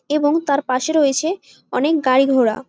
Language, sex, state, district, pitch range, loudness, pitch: Bengali, female, West Bengal, Jalpaiguri, 260-305 Hz, -18 LUFS, 280 Hz